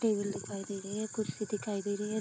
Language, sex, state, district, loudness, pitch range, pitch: Hindi, female, Bihar, Sitamarhi, -36 LUFS, 200-215 Hz, 205 Hz